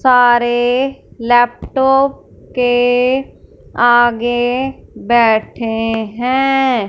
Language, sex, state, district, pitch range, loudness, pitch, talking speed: Hindi, female, Punjab, Fazilka, 240-260 Hz, -14 LUFS, 245 Hz, 50 wpm